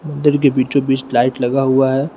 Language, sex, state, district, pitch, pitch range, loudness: Hindi, male, Uttar Pradesh, Lucknow, 135 Hz, 130-145 Hz, -15 LUFS